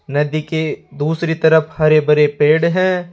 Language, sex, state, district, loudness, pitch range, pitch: Hindi, male, Rajasthan, Jaipur, -15 LUFS, 150-165 Hz, 155 Hz